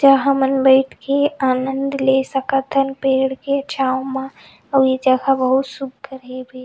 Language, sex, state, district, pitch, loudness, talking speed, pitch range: Chhattisgarhi, female, Chhattisgarh, Rajnandgaon, 270 Hz, -17 LUFS, 160 wpm, 265-275 Hz